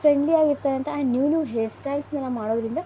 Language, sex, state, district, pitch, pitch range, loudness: Kannada, female, Karnataka, Belgaum, 285 Hz, 255-295 Hz, -24 LUFS